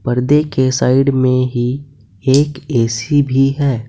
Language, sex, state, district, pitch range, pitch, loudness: Hindi, male, Uttar Pradesh, Saharanpur, 125-140 Hz, 130 Hz, -15 LUFS